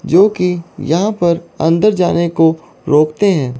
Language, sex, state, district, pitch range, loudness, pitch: Hindi, female, Chandigarh, Chandigarh, 160-180 Hz, -14 LUFS, 170 Hz